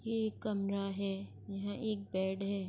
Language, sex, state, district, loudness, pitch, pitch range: Urdu, female, Andhra Pradesh, Anantapur, -38 LUFS, 200 Hz, 195-210 Hz